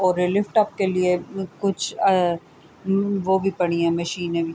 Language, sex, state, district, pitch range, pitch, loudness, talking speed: Urdu, female, Andhra Pradesh, Anantapur, 175-195 Hz, 185 Hz, -22 LUFS, 185 wpm